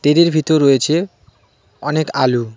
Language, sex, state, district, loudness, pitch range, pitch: Bengali, male, West Bengal, Cooch Behar, -15 LUFS, 135-155 Hz, 150 Hz